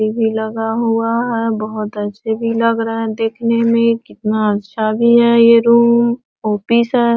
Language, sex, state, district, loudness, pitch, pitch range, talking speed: Hindi, female, Bihar, Sitamarhi, -15 LUFS, 230 Hz, 220-235 Hz, 160 wpm